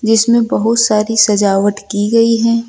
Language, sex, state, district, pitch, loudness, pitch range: Hindi, male, Uttar Pradesh, Lucknow, 225 Hz, -12 LUFS, 205-230 Hz